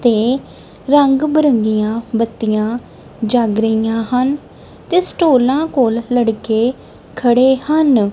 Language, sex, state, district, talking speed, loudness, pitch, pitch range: Punjabi, female, Punjab, Kapurthala, 95 wpm, -15 LUFS, 245 Hz, 225-270 Hz